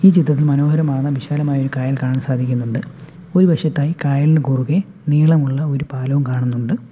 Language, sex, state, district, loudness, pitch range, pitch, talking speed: Malayalam, male, Kerala, Kollam, -17 LUFS, 130-155 Hz, 145 Hz, 140 wpm